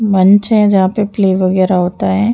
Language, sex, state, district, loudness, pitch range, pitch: Hindi, female, Uttar Pradesh, Jyotiba Phule Nagar, -12 LUFS, 185-210 Hz, 195 Hz